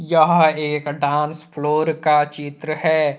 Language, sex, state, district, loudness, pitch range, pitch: Hindi, male, Jharkhand, Deoghar, -19 LUFS, 150-155 Hz, 150 Hz